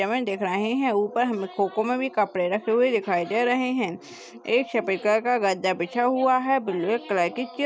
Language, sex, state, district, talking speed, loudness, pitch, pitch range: Hindi, female, Chhattisgarh, Bastar, 220 wpm, -24 LUFS, 220 Hz, 195-245 Hz